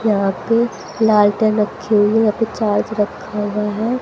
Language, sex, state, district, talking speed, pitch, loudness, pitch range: Hindi, female, Haryana, Jhajjar, 180 wpm, 215 Hz, -17 LUFS, 210-220 Hz